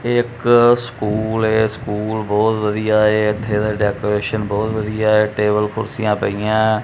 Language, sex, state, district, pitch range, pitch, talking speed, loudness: Punjabi, male, Punjab, Kapurthala, 105-110 Hz, 110 Hz, 125 wpm, -17 LUFS